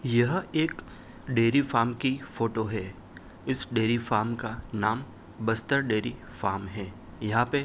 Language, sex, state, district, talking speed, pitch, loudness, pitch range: Hindi, male, Uttar Pradesh, Hamirpur, 150 wpm, 115 Hz, -28 LUFS, 110-125 Hz